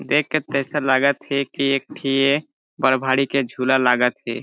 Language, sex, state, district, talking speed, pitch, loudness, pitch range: Chhattisgarhi, male, Chhattisgarh, Jashpur, 205 wpm, 135 Hz, -20 LUFS, 130-140 Hz